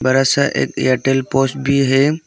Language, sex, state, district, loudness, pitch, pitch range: Hindi, male, Arunachal Pradesh, Longding, -16 LUFS, 135 Hz, 135-140 Hz